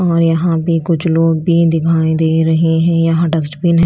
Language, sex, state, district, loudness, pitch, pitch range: Hindi, female, Chhattisgarh, Raipur, -13 LUFS, 165 Hz, 160-170 Hz